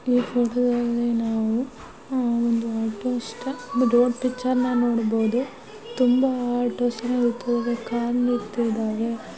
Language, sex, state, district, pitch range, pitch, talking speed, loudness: Kannada, female, Karnataka, Shimoga, 230-250 Hz, 240 Hz, 60 wpm, -23 LUFS